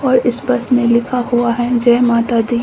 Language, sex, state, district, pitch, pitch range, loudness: Hindi, female, Bihar, Samastipur, 240 Hz, 235-250 Hz, -14 LUFS